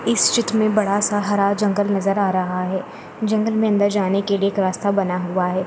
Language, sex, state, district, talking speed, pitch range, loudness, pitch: Hindi, female, Goa, North and South Goa, 230 wpm, 190-210 Hz, -19 LUFS, 200 Hz